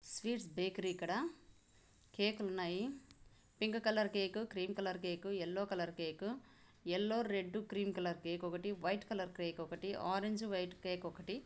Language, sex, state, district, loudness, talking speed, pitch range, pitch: Telugu, female, Andhra Pradesh, Anantapur, -41 LUFS, 150 wpm, 180-210 Hz, 195 Hz